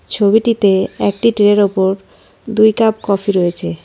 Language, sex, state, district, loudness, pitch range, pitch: Bengali, female, West Bengal, Darjeeling, -14 LUFS, 190-220 Hz, 205 Hz